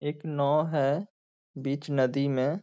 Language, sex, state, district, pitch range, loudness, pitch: Hindi, male, Bihar, Saharsa, 140-150 Hz, -28 LUFS, 145 Hz